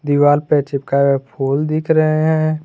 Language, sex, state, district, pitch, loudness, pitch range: Hindi, male, Jharkhand, Garhwa, 145 Hz, -16 LUFS, 140-155 Hz